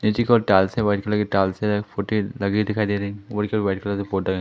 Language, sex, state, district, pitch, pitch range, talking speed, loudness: Hindi, male, Madhya Pradesh, Katni, 105 Hz, 100-105 Hz, 230 wpm, -22 LUFS